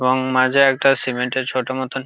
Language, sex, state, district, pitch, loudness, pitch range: Bengali, male, West Bengal, Jalpaiguri, 130 Hz, -18 LUFS, 130-135 Hz